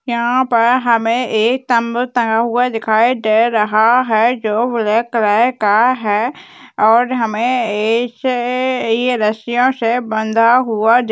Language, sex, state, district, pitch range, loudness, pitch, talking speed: Hindi, female, Uttarakhand, Uttarkashi, 220-250 Hz, -15 LUFS, 235 Hz, 130 wpm